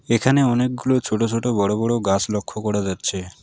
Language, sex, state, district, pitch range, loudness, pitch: Bengali, male, West Bengal, Alipurduar, 100-120 Hz, -21 LUFS, 115 Hz